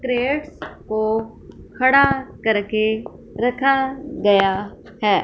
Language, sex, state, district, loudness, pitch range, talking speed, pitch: Hindi, female, Punjab, Fazilka, -20 LUFS, 215-270 Hz, 70 wpm, 225 Hz